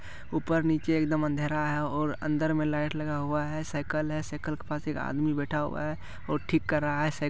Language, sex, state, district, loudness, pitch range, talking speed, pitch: Hindi, male, Bihar, Supaul, -30 LUFS, 150-155 Hz, 240 wpm, 150 Hz